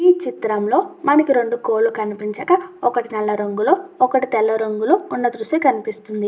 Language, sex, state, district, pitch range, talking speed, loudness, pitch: Telugu, female, Andhra Pradesh, Chittoor, 215-315 Hz, 125 wpm, -19 LUFS, 240 Hz